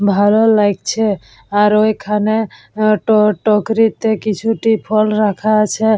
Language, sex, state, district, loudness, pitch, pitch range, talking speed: Bengali, female, West Bengal, Purulia, -14 LUFS, 215 Hz, 210-220 Hz, 90 wpm